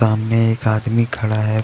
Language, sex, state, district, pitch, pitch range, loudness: Hindi, male, Jharkhand, Deoghar, 110 Hz, 110-115 Hz, -18 LUFS